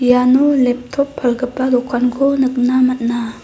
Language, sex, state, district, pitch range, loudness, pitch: Garo, female, Meghalaya, South Garo Hills, 245-260 Hz, -15 LUFS, 250 Hz